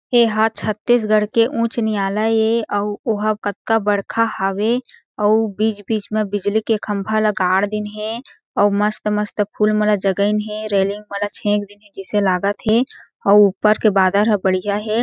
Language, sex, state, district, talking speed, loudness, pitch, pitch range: Chhattisgarhi, female, Chhattisgarh, Jashpur, 185 wpm, -18 LUFS, 210 Hz, 205-220 Hz